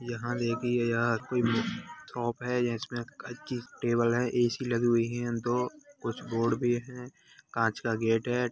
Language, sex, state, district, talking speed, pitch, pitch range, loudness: Hindi, male, Uttar Pradesh, Hamirpur, 160 wpm, 120 Hz, 115-125 Hz, -30 LUFS